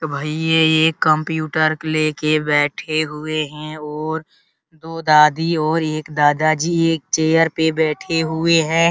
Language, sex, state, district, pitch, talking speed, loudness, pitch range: Hindi, male, Bihar, Araria, 155 Hz, 150 wpm, -17 LUFS, 155-160 Hz